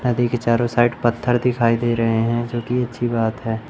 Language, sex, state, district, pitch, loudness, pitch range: Hindi, male, Madhya Pradesh, Umaria, 120 Hz, -20 LUFS, 115-120 Hz